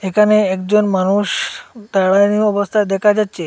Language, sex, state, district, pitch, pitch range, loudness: Bengali, male, Assam, Hailakandi, 205 Hz, 195-210 Hz, -15 LUFS